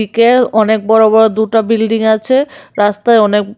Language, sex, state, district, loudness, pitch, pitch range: Bengali, female, Tripura, West Tripura, -11 LUFS, 220 Hz, 220-230 Hz